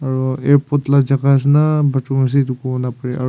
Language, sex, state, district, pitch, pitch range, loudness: Nagamese, male, Nagaland, Kohima, 135 Hz, 130-140 Hz, -16 LUFS